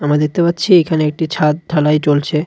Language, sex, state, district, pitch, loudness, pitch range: Bengali, male, West Bengal, Cooch Behar, 155 Hz, -14 LUFS, 150-170 Hz